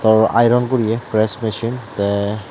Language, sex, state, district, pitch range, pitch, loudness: Chakma, male, Tripura, Dhalai, 110-120 Hz, 110 Hz, -17 LUFS